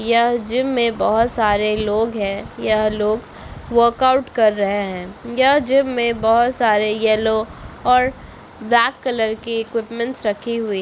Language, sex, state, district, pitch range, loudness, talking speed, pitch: Hindi, female, Bihar, Begusarai, 215-240 Hz, -18 LUFS, 145 wpm, 230 Hz